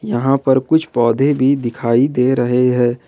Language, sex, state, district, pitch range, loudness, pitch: Hindi, male, Jharkhand, Ranchi, 120-135 Hz, -15 LUFS, 125 Hz